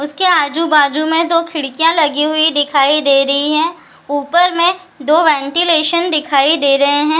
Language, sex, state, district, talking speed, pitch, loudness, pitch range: Hindi, female, Bihar, Jahanabad, 160 wpm, 310 Hz, -12 LUFS, 290-335 Hz